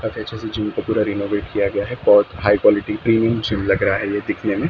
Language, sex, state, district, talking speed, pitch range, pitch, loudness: Hindi, male, Maharashtra, Mumbai Suburban, 270 wpm, 100-110 Hz, 105 Hz, -19 LUFS